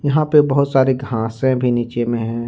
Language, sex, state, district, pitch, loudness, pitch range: Hindi, male, Jharkhand, Ranchi, 130 Hz, -17 LUFS, 120-140 Hz